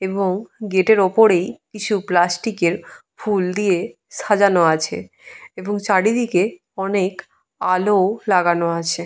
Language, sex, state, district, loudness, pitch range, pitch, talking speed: Bengali, female, Jharkhand, Jamtara, -18 LUFS, 180-210 Hz, 190 Hz, 100 wpm